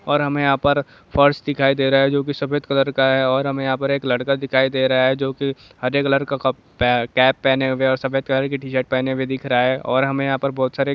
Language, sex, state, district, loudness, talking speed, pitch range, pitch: Hindi, male, Jharkhand, Jamtara, -19 LUFS, 235 wpm, 130-140 Hz, 135 Hz